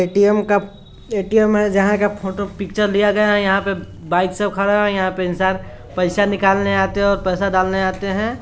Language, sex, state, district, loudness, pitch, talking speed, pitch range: Hindi, male, Bihar, Sitamarhi, -18 LUFS, 200 Hz, 200 wpm, 190-205 Hz